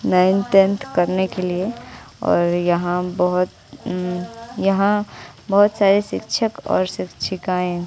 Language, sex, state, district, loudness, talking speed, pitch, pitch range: Hindi, female, Bihar, West Champaran, -19 LUFS, 105 wpm, 185 Hz, 180-200 Hz